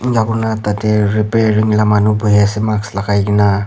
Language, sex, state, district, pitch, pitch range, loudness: Nagamese, male, Nagaland, Kohima, 105 Hz, 105-110 Hz, -14 LUFS